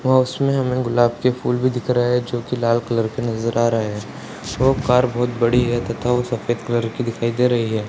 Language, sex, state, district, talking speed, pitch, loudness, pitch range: Hindi, male, Bihar, Purnia, 250 wpm, 120 Hz, -20 LUFS, 115-125 Hz